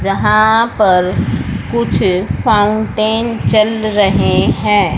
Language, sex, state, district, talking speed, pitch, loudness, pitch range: Hindi, female, Haryana, Rohtak, 85 wpm, 215 Hz, -13 LUFS, 195-220 Hz